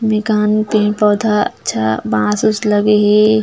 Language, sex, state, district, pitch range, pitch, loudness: Chhattisgarhi, female, Chhattisgarh, Jashpur, 205-215 Hz, 210 Hz, -14 LUFS